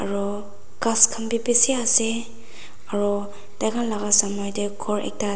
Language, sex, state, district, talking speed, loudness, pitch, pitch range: Nagamese, female, Nagaland, Dimapur, 125 wpm, -21 LUFS, 205 Hz, 200-230 Hz